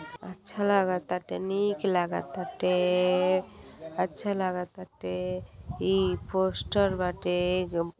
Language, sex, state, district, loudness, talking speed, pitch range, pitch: Hindi, female, Uttar Pradesh, Gorakhpur, -28 LUFS, 65 wpm, 175-190 Hz, 180 Hz